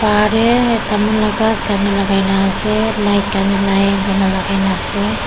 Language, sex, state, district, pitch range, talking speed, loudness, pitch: Nagamese, female, Nagaland, Kohima, 195-215 Hz, 195 wpm, -14 LUFS, 200 Hz